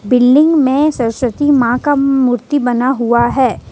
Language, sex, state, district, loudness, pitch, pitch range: Hindi, female, Jharkhand, Ranchi, -12 LUFS, 260 Hz, 245-280 Hz